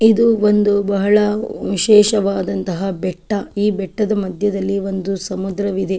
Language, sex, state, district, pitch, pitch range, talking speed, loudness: Kannada, female, Karnataka, Chamarajanagar, 200 Hz, 190-210 Hz, 100 wpm, -17 LUFS